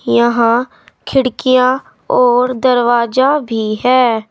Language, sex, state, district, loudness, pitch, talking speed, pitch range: Hindi, female, Uttar Pradesh, Saharanpur, -13 LUFS, 245 Hz, 85 wpm, 235-255 Hz